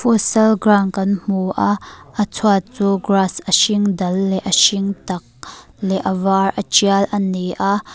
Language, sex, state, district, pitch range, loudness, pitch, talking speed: Mizo, female, Mizoram, Aizawl, 190-205 Hz, -17 LUFS, 195 Hz, 175 wpm